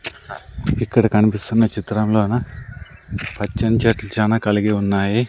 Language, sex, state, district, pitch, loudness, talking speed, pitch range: Telugu, male, Andhra Pradesh, Sri Satya Sai, 110 Hz, -19 LUFS, 90 wpm, 105-115 Hz